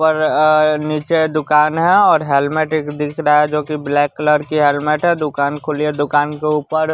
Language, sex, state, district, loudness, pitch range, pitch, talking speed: Hindi, male, Bihar, West Champaran, -15 LUFS, 150-155 Hz, 150 Hz, 215 wpm